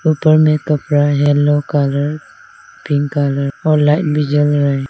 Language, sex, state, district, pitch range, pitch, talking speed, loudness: Hindi, female, Arunachal Pradesh, Lower Dibang Valley, 145-150 Hz, 145 Hz, 185 wpm, -14 LUFS